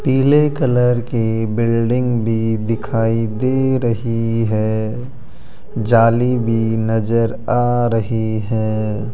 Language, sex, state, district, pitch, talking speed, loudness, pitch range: Hindi, male, Rajasthan, Jaipur, 115 Hz, 100 wpm, -17 LUFS, 110-120 Hz